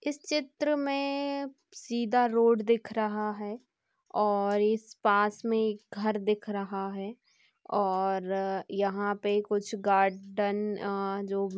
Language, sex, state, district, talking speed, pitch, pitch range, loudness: Hindi, female, Chhattisgarh, Sukma, 125 wpm, 210 Hz, 200-230 Hz, -30 LUFS